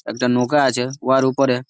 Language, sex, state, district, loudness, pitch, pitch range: Bengali, male, West Bengal, Malda, -18 LUFS, 130 Hz, 125-135 Hz